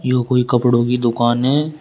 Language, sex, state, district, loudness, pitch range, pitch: Hindi, male, Uttar Pradesh, Shamli, -16 LUFS, 120-130 Hz, 125 Hz